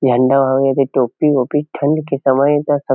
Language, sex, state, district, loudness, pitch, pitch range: Chhattisgarhi, male, Chhattisgarh, Kabirdham, -15 LUFS, 135 Hz, 130-145 Hz